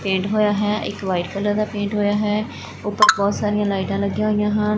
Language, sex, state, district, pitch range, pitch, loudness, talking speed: Punjabi, female, Punjab, Fazilka, 200-210 Hz, 205 Hz, -20 LUFS, 215 wpm